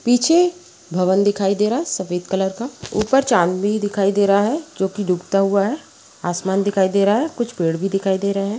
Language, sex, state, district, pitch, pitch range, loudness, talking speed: Hindi, female, Chhattisgarh, Kabirdham, 200 Hz, 190-215 Hz, -19 LUFS, 225 wpm